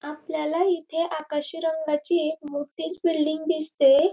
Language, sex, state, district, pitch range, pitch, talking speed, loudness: Marathi, female, Maharashtra, Dhule, 300-335 Hz, 315 Hz, 130 wpm, -25 LUFS